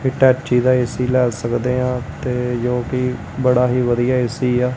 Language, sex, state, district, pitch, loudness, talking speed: Punjabi, male, Punjab, Kapurthala, 125 Hz, -18 LUFS, 165 wpm